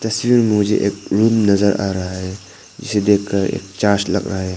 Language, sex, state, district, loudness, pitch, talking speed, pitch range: Hindi, male, Arunachal Pradesh, Papum Pare, -17 LUFS, 100 Hz, 225 wpm, 95-105 Hz